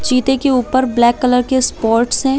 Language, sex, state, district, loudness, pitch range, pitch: Hindi, female, Chhattisgarh, Bilaspur, -14 LUFS, 240-265 Hz, 255 Hz